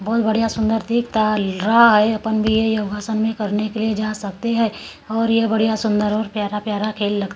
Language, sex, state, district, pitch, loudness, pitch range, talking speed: Hindi, female, Maharashtra, Gondia, 220 Hz, -19 LUFS, 210-225 Hz, 205 wpm